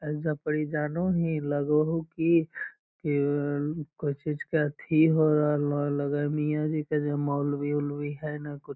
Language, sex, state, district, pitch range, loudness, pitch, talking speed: Magahi, male, Bihar, Lakhisarai, 145-155 Hz, -28 LUFS, 150 Hz, 170 wpm